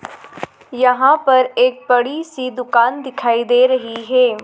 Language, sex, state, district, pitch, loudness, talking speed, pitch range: Hindi, female, Madhya Pradesh, Dhar, 255 Hz, -15 LUFS, 135 wpm, 245-260 Hz